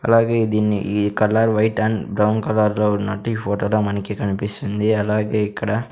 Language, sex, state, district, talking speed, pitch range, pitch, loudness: Telugu, male, Andhra Pradesh, Sri Satya Sai, 180 wpm, 105-110 Hz, 105 Hz, -19 LUFS